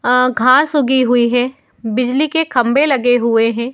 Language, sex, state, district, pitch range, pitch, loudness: Hindi, female, Uttar Pradesh, Muzaffarnagar, 245-270 Hz, 250 Hz, -14 LUFS